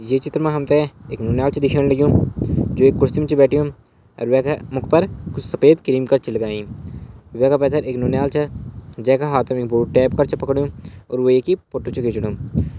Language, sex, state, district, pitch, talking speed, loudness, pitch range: Hindi, male, Uttarakhand, Uttarkashi, 130 Hz, 200 wpm, -18 LUFS, 120-140 Hz